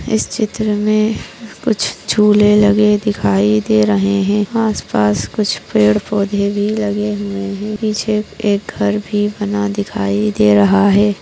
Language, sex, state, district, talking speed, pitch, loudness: Hindi, female, Maharashtra, Nagpur, 145 wpm, 205 Hz, -15 LUFS